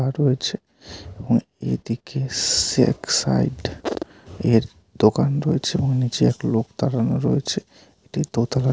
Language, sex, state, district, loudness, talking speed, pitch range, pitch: Bengali, male, West Bengal, North 24 Parganas, -22 LUFS, 125 wpm, 110-135 Hz, 125 Hz